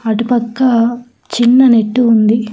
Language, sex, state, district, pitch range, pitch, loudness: Telugu, female, Telangana, Hyderabad, 225-245 Hz, 235 Hz, -11 LUFS